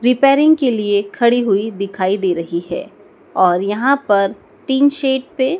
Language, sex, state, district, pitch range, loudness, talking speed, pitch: Hindi, male, Madhya Pradesh, Dhar, 195-265 Hz, -16 LUFS, 150 wpm, 220 Hz